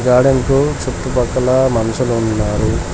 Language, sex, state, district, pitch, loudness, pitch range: Telugu, male, Telangana, Komaram Bheem, 125 Hz, -15 LUFS, 110-130 Hz